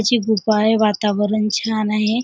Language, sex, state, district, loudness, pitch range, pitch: Marathi, female, Maharashtra, Chandrapur, -18 LUFS, 210-220 Hz, 215 Hz